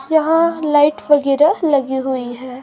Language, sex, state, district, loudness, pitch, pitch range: Hindi, female, Chhattisgarh, Raipur, -15 LUFS, 290 Hz, 265-315 Hz